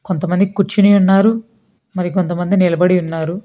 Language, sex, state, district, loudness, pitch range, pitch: Telugu, female, Telangana, Hyderabad, -15 LUFS, 180-200 Hz, 190 Hz